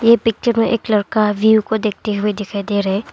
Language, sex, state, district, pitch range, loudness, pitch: Hindi, female, Arunachal Pradesh, Longding, 205-225 Hz, -17 LUFS, 215 Hz